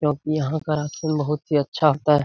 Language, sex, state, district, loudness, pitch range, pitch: Hindi, male, Bihar, Jamui, -22 LUFS, 145-155 Hz, 150 Hz